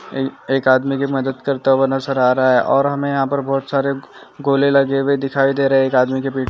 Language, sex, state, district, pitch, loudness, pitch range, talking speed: Hindi, male, Andhra Pradesh, Chittoor, 135 Hz, -17 LUFS, 135-140 Hz, 260 wpm